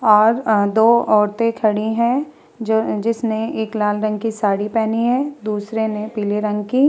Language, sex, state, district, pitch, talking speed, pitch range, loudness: Hindi, female, Bihar, Vaishali, 220 Hz, 190 wpm, 210-230 Hz, -18 LUFS